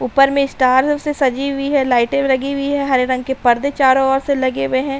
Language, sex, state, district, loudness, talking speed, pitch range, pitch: Hindi, female, Uttar Pradesh, Hamirpur, -16 LUFS, 250 wpm, 260-280 Hz, 270 Hz